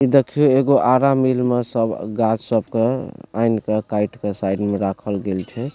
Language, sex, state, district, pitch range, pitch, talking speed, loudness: Maithili, male, Bihar, Supaul, 105-130 Hz, 115 Hz, 200 wpm, -19 LUFS